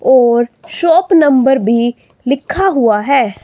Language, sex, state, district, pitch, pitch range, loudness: Hindi, female, Himachal Pradesh, Shimla, 270 Hz, 240-330 Hz, -12 LUFS